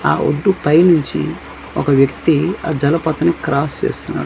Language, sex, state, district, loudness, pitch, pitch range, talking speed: Telugu, male, Andhra Pradesh, Manyam, -16 LUFS, 160 Hz, 145-170 Hz, 125 wpm